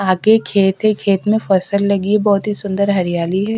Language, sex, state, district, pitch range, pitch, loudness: Hindi, female, Haryana, Rohtak, 190-210 Hz, 200 Hz, -15 LUFS